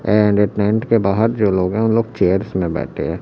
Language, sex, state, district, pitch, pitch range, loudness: Hindi, male, Chhattisgarh, Raipur, 105 Hz, 95-110 Hz, -17 LUFS